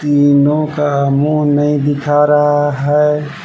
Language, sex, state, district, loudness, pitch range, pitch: Hindi, male, Jharkhand, Palamu, -13 LUFS, 145-150 Hz, 145 Hz